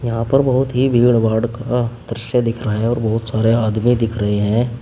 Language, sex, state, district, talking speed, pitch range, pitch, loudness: Hindi, male, Uttar Pradesh, Shamli, 210 wpm, 110-120 Hz, 115 Hz, -17 LUFS